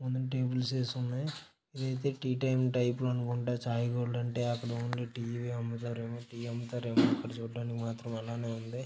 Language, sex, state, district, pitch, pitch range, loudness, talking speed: Telugu, male, Telangana, Nalgonda, 120 Hz, 120-125 Hz, -34 LUFS, 160 wpm